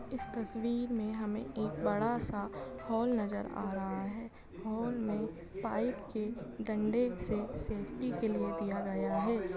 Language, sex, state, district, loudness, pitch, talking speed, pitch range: Hindi, female, Jharkhand, Jamtara, -36 LUFS, 220 Hz, 150 wpm, 195-235 Hz